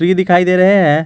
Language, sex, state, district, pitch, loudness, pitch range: Hindi, male, Jharkhand, Garhwa, 180 Hz, -11 LUFS, 175-185 Hz